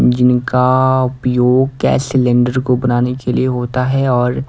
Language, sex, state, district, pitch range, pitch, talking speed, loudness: Hindi, male, Odisha, Nuapada, 125-130 Hz, 125 Hz, 145 wpm, -14 LUFS